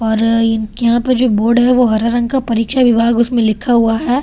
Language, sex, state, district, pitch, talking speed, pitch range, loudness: Hindi, female, Delhi, New Delhi, 235 Hz, 240 wpm, 225-245 Hz, -13 LUFS